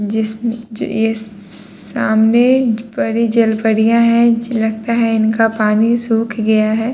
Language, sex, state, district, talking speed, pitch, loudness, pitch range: Hindi, male, Uttar Pradesh, Muzaffarnagar, 130 wpm, 225 Hz, -15 LUFS, 220-230 Hz